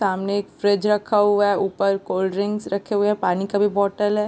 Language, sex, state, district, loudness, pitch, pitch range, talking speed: Hindi, female, Chhattisgarh, Bilaspur, -21 LUFS, 200 Hz, 195-205 Hz, 240 wpm